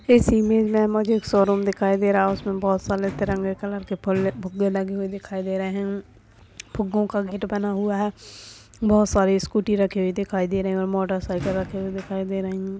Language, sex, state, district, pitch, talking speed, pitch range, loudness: Hindi, male, Maharashtra, Dhule, 195 Hz, 205 wpm, 190-205 Hz, -23 LUFS